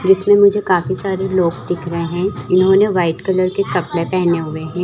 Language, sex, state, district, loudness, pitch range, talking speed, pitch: Chhattisgarhi, female, Chhattisgarh, Jashpur, -16 LUFS, 170-190 Hz, 200 wpm, 185 Hz